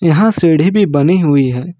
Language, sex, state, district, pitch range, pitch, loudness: Hindi, male, Jharkhand, Ranchi, 145-180 Hz, 165 Hz, -12 LUFS